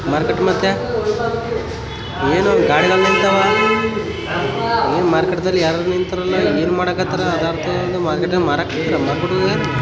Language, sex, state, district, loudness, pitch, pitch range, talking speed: Kannada, male, Karnataka, Raichur, -17 LUFS, 180 Hz, 165-185 Hz, 85 wpm